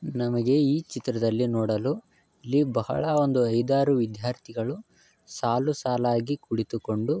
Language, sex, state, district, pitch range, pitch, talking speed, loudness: Kannada, male, Karnataka, Belgaum, 115-145 Hz, 125 Hz, 110 wpm, -26 LUFS